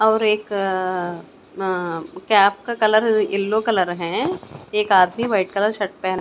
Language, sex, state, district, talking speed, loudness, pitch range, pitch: Hindi, female, Chandigarh, Chandigarh, 155 wpm, -20 LUFS, 185-215 Hz, 200 Hz